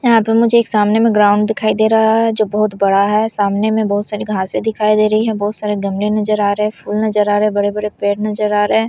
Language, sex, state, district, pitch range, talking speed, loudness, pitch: Hindi, female, Himachal Pradesh, Shimla, 205-220 Hz, 285 wpm, -15 LUFS, 210 Hz